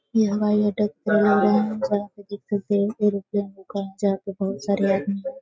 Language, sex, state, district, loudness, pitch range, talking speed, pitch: Hindi, female, Bihar, Sitamarhi, -23 LUFS, 200-210 Hz, 210 wpm, 205 Hz